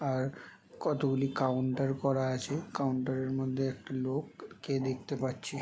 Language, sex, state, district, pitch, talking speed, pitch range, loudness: Bengali, male, West Bengal, Jhargram, 135 Hz, 140 wpm, 130-135 Hz, -33 LUFS